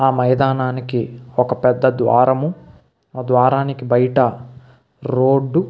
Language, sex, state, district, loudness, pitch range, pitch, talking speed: Telugu, male, Andhra Pradesh, Visakhapatnam, -17 LUFS, 125-135 Hz, 130 Hz, 105 wpm